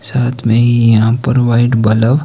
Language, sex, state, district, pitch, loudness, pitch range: Hindi, male, Himachal Pradesh, Shimla, 120 Hz, -11 LUFS, 115-125 Hz